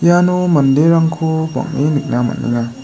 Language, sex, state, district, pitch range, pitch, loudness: Garo, male, Meghalaya, West Garo Hills, 130-165 Hz, 150 Hz, -15 LUFS